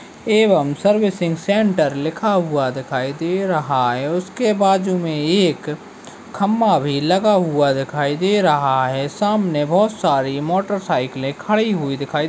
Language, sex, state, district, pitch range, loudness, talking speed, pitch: Hindi, male, Chhattisgarh, Kabirdham, 145-200 Hz, -18 LUFS, 135 wpm, 170 Hz